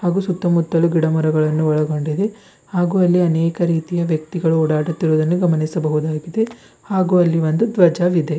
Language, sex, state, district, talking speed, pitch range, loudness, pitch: Kannada, female, Karnataka, Bidar, 115 wpm, 155-180 Hz, -18 LUFS, 165 Hz